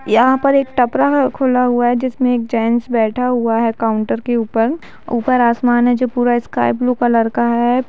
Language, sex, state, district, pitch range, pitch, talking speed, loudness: Hindi, female, Bihar, Gaya, 230-250 Hz, 240 Hz, 195 wpm, -15 LUFS